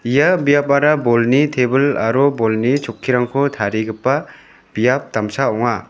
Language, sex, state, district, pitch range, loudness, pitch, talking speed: Garo, male, Meghalaya, West Garo Hills, 115-140 Hz, -16 LUFS, 125 Hz, 110 wpm